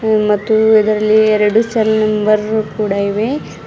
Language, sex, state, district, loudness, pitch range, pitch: Kannada, female, Karnataka, Bidar, -13 LUFS, 210-220 Hz, 215 Hz